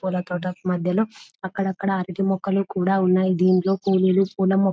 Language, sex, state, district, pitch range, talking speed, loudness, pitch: Telugu, female, Telangana, Nalgonda, 185-195 Hz, 165 wpm, -22 LUFS, 190 Hz